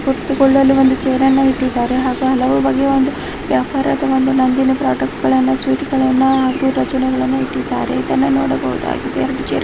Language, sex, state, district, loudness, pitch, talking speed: Kannada, female, Karnataka, Mysore, -15 LUFS, 260 Hz, 155 wpm